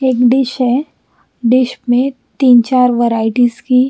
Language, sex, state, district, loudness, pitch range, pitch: Hindi, female, Bihar, Patna, -13 LUFS, 240-255 Hz, 250 Hz